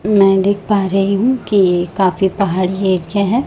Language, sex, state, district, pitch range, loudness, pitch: Hindi, female, Chhattisgarh, Raipur, 190-205 Hz, -15 LUFS, 195 Hz